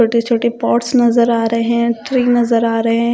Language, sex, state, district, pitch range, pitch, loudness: Hindi, female, Punjab, Kapurthala, 230-235 Hz, 235 Hz, -14 LUFS